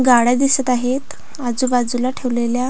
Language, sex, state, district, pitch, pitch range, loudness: Marathi, female, Maharashtra, Pune, 250 Hz, 245-260 Hz, -18 LUFS